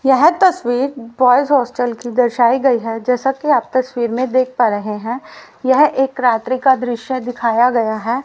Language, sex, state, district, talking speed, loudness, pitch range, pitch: Hindi, female, Haryana, Rohtak, 180 wpm, -16 LUFS, 235-265 Hz, 250 Hz